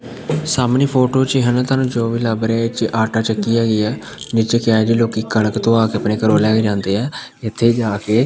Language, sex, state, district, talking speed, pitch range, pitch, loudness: Punjabi, male, Punjab, Pathankot, 210 wpm, 110-125 Hz, 115 Hz, -17 LUFS